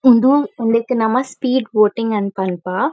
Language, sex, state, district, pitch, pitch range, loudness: Tulu, female, Karnataka, Dakshina Kannada, 230 Hz, 210-255 Hz, -17 LUFS